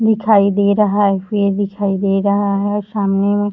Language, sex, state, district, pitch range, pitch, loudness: Hindi, female, Uttar Pradesh, Gorakhpur, 200-205 Hz, 200 Hz, -15 LUFS